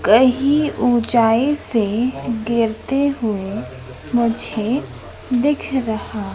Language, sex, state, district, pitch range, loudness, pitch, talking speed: Hindi, female, Madhya Pradesh, Dhar, 220-260 Hz, -19 LUFS, 235 Hz, 75 wpm